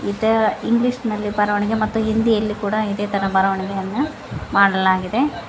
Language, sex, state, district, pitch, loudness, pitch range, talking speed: Kannada, female, Karnataka, Koppal, 210 Hz, -19 LUFS, 200-225 Hz, 120 wpm